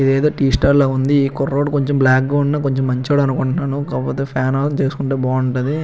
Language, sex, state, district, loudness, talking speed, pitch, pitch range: Telugu, male, Andhra Pradesh, Krishna, -17 LUFS, 195 wpm, 135 Hz, 135-145 Hz